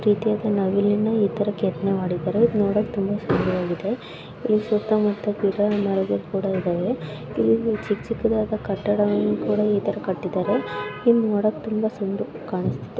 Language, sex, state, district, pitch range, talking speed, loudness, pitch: Kannada, female, Karnataka, Belgaum, 195-215 Hz, 145 wpm, -23 LUFS, 205 Hz